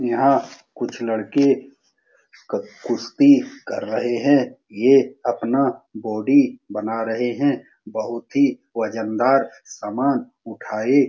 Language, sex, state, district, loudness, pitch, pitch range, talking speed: Hindi, male, Bihar, Saran, -20 LUFS, 130 Hz, 115-140 Hz, 115 wpm